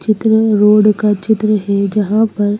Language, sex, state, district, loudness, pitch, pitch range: Hindi, female, Madhya Pradesh, Bhopal, -13 LUFS, 210 Hz, 205-215 Hz